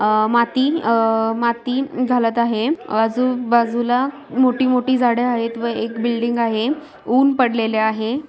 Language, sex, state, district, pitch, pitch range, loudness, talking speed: Marathi, female, Maharashtra, Aurangabad, 235 Hz, 230-255 Hz, -18 LUFS, 135 wpm